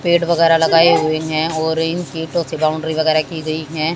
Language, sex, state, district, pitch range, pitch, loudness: Hindi, female, Haryana, Jhajjar, 155-165 Hz, 160 Hz, -16 LUFS